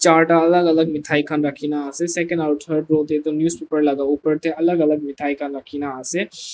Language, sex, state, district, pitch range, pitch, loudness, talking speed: Nagamese, male, Nagaland, Dimapur, 145-165 Hz, 155 Hz, -20 LUFS, 210 wpm